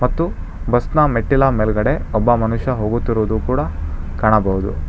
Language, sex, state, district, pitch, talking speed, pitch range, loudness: Kannada, male, Karnataka, Bangalore, 110 Hz, 125 wpm, 95-125 Hz, -18 LUFS